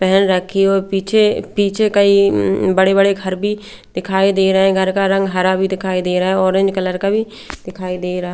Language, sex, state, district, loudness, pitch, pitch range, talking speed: Hindi, female, Bihar, Katihar, -15 LUFS, 190 Hz, 185-195 Hz, 215 wpm